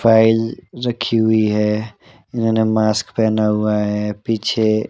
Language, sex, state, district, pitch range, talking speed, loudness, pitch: Hindi, male, Himachal Pradesh, Shimla, 105-115 Hz, 120 wpm, -17 LUFS, 110 Hz